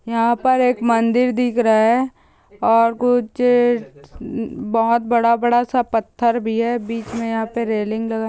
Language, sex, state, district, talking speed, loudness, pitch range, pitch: Hindi, female, Andhra Pradesh, Chittoor, 280 wpm, -18 LUFS, 225-245 Hz, 235 Hz